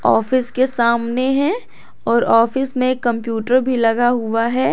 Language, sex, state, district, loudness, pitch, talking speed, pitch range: Hindi, female, Jharkhand, Garhwa, -17 LUFS, 245 Hz, 150 wpm, 235-260 Hz